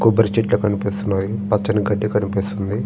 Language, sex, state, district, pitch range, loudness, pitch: Telugu, male, Andhra Pradesh, Srikakulam, 100-105 Hz, -20 LUFS, 105 Hz